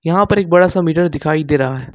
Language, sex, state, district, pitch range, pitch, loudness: Hindi, male, Jharkhand, Ranchi, 150-180 Hz, 165 Hz, -14 LUFS